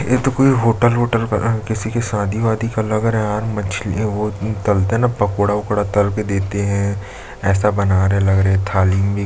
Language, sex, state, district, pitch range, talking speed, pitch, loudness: Hindi, male, Chhattisgarh, Jashpur, 100-110 Hz, 235 wpm, 105 Hz, -18 LUFS